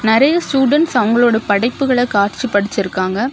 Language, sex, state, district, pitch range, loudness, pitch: Tamil, female, Tamil Nadu, Kanyakumari, 205-270 Hz, -15 LUFS, 240 Hz